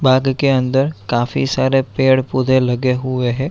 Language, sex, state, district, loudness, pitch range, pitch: Hindi, male, Bihar, Araria, -16 LUFS, 125-135 Hz, 130 Hz